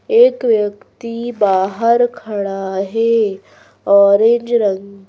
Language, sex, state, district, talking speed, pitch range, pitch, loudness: Hindi, female, Madhya Pradesh, Bhopal, 95 wpm, 200-235 Hz, 210 Hz, -15 LUFS